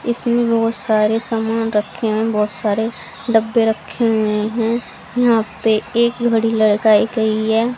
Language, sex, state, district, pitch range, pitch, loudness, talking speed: Hindi, female, Haryana, Rohtak, 215-230 Hz, 225 Hz, -17 LUFS, 145 wpm